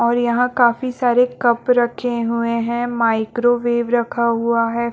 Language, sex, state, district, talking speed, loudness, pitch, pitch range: Hindi, female, Chhattisgarh, Balrampur, 145 wpm, -18 LUFS, 240 Hz, 235-245 Hz